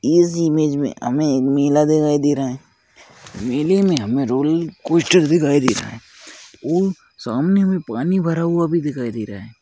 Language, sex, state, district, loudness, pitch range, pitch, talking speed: Hindi, male, Chhattisgarh, Balrampur, -18 LUFS, 135-170 Hz, 150 Hz, 195 wpm